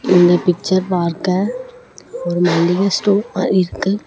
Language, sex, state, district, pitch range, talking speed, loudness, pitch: Tamil, female, Tamil Nadu, Namakkal, 175-200 Hz, 120 wpm, -16 LUFS, 185 Hz